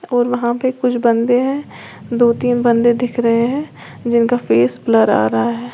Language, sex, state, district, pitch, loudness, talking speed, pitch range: Hindi, female, Uttar Pradesh, Lalitpur, 240 Hz, -15 LUFS, 190 wpm, 235-245 Hz